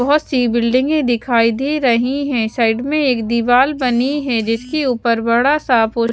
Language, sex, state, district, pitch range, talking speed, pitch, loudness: Hindi, female, Chandigarh, Chandigarh, 230-275 Hz, 165 wpm, 245 Hz, -16 LUFS